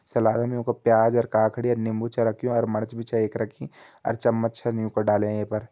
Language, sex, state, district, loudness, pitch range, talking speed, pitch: Hindi, male, Uttarakhand, Tehri Garhwal, -24 LUFS, 110-120 Hz, 230 wpm, 115 Hz